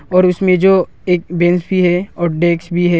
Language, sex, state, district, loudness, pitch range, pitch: Hindi, male, Arunachal Pradesh, Longding, -14 LUFS, 175-185 Hz, 180 Hz